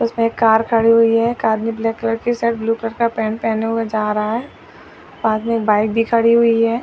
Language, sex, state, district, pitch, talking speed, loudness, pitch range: Hindi, female, Chhattisgarh, Raigarh, 230 Hz, 245 wpm, -17 LUFS, 225-230 Hz